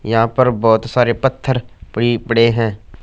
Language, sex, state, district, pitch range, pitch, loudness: Hindi, male, Punjab, Fazilka, 110-125 Hz, 115 Hz, -16 LUFS